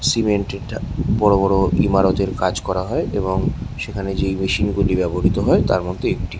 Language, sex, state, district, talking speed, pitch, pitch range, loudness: Bengali, male, West Bengal, Jhargram, 160 wpm, 95 Hz, 95-105 Hz, -19 LUFS